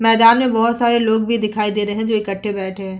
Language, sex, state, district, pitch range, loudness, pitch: Hindi, female, Uttar Pradesh, Hamirpur, 205-230 Hz, -16 LUFS, 220 Hz